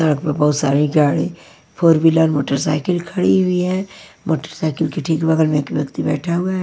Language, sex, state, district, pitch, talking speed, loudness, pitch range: Hindi, female, Punjab, Pathankot, 160 Hz, 190 wpm, -17 LUFS, 150-175 Hz